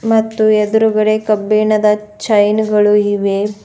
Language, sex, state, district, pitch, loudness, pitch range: Kannada, female, Karnataka, Bidar, 215 Hz, -13 LUFS, 210-215 Hz